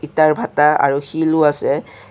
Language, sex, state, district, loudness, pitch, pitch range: Assamese, male, Assam, Kamrup Metropolitan, -16 LUFS, 155 Hz, 150-155 Hz